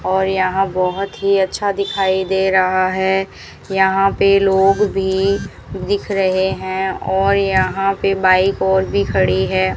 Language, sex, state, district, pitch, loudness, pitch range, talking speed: Hindi, female, Rajasthan, Bikaner, 190 Hz, -16 LUFS, 185-195 Hz, 145 wpm